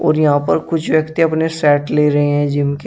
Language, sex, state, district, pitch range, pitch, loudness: Hindi, male, Uttar Pradesh, Shamli, 145-160 Hz, 150 Hz, -15 LUFS